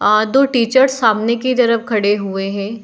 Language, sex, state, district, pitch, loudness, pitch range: Hindi, female, Bihar, Saharsa, 225 Hz, -15 LUFS, 205-245 Hz